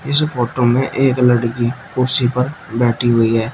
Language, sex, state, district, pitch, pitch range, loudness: Hindi, male, Uttar Pradesh, Shamli, 125 Hz, 120-130 Hz, -16 LUFS